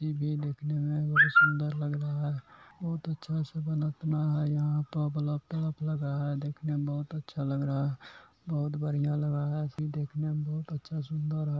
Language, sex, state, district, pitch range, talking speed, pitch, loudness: Hindi, male, Bihar, Araria, 145-155 Hz, 200 wpm, 150 Hz, -31 LUFS